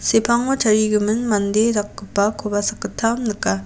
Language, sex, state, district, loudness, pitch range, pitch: Garo, female, Meghalaya, West Garo Hills, -19 LUFS, 205-225 Hz, 215 Hz